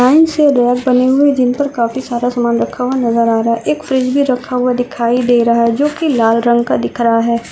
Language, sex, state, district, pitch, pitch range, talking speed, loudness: Hindi, female, Rajasthan, Churu, 245 Hz, 235-260 Hz, 240 wpm, -13 LUFS